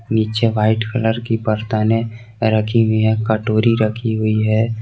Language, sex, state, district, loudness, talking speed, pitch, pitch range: Hindi, male, Jharkhand, Garhwa, -17 LUFS, 150 wpm, 110 Hz, 110-115 Hz